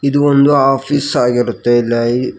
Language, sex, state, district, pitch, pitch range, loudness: Kannada, male, Karnataka, Koppal, 135 Hz, 120-140 Hz, -13 LUFS